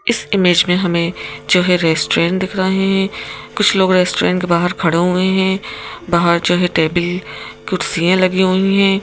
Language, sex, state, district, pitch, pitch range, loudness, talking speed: Hindi, female, Madhya Pradesh, Bhopal, 180 Hz, 175-190 Hz, -15 LUFS, 175 wpm